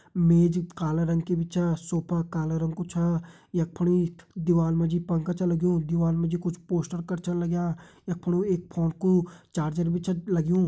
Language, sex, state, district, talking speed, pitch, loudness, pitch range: Hindi, male, Uttarakhand, Tehri Garhwal, 210 wpm, 170 Hz, -27 LUFS, 165-175 Hz